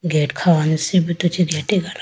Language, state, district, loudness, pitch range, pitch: Idu Mishmi, Arunachal Pradesh, Lower Dibang Valley, -18 LUFS, 155-180 Hz, 170 Hz